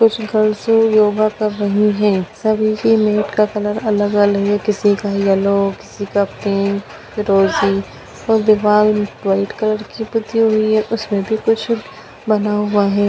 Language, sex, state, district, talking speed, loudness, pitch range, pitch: Hindi, female, Bihar, Bhagalpur, 155 wpm, -16 LUFS, 200-215 Hz, 210 Hz